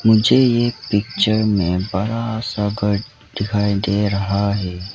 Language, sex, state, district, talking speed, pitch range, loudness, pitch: Hindi, male, Arunachal Pradesh, Lower Dibang Valley, 135 wpm, 100-110 Hz, -18 LUFS, 105 Hz